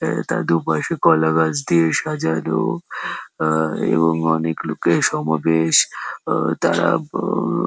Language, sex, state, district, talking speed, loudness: Bengali, male, West Bengal, Jhargram, 125 wpm, -19 LUFS